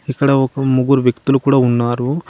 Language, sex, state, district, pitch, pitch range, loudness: Telugu, male, Telangana, Adilabad, 135 Hz, 125-140 Hz, -15 LUFS